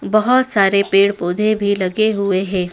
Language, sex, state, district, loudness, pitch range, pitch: Hindi, female, Madhya Pradesh, Dhar, -15 LUFS, 190-215 Hz, 200 Hz